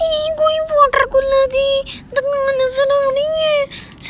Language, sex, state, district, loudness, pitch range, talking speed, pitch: Punjabi, female, Punjab, Kapurthala, -16 LUFS, 270-305 Hz, 160 wpm, 280 Hz